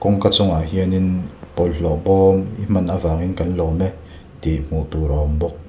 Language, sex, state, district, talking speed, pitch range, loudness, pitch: Mizo, male, Mizoram, Aizawl, 180 wpm, 80-95 Hz, -19 LUFS, 90 Hz